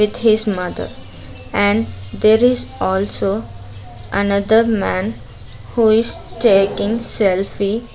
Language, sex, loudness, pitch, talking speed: English, female, -14 LUFS, 195 Hz, 100 wpm